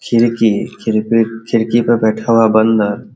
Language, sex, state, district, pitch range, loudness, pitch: Hindi, male, Bihar, Sitamarhi, 110-115 Hz, -14 LUFS, 115 Hz